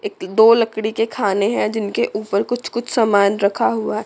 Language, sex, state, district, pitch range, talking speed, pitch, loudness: Hindi, female, Chandigarh, Chandigarh, 200-230 Hz, 190 wpm, 220 Hz, -18 LUFS